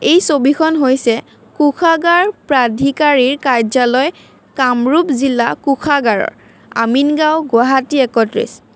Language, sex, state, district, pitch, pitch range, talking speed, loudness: Assamese, female, Assam, Kamrup Metropolitan, 275 Hz, 250-305 Hz, 80 wpm, -13 LUFS